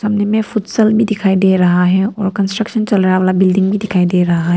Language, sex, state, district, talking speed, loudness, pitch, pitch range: Hindi, female, Arunachal Pradesh, Papum Pare, 235 wpm, -13 LUFS, 195 Hz, 185-210 Hz